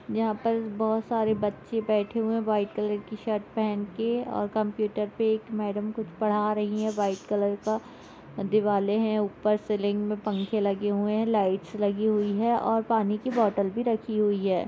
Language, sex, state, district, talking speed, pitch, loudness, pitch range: Hindi, female, Jharkhand, Jamtara, 190 wpm, 210 Hz, -27 LUFS, 205-220 Hz